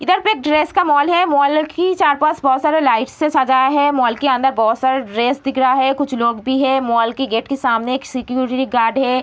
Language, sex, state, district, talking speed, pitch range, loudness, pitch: Hindi, female, Bihar, Gopalganj, 245 wpm, 255-290 Hz, -16 LUFS, 265 Hz